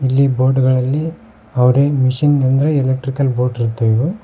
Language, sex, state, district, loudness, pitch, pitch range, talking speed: Kannada, male, Karnataka, Koppal, -15 LUFS, 130 Hz, 125-140 Hz, 140 wpm